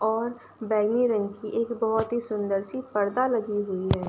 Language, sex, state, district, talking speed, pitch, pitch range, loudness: Hindi, female, Uttar Pradesh, Ghazipur, 190 wpm, 220 Hz, 205-235 Hz, -27 LUFS